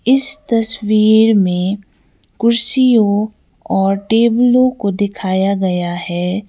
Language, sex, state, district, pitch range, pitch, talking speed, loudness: Hindi, female, Sikkim, Gangtok, 195-235 Hz, 210 Hz, 90 wpm, -14 LUFS